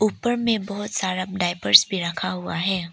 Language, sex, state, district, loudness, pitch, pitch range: Hindi, female, Arunachal Pradesh, Papum Pare, -21 LUFS, 190 Hz, 180-205 Hz